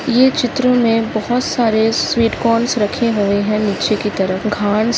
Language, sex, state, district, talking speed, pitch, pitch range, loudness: Hindi, female, Uttarakhand, Uttarkashi, 180 wpm, 225 Hz, 210-240 Hz, -16 LUFS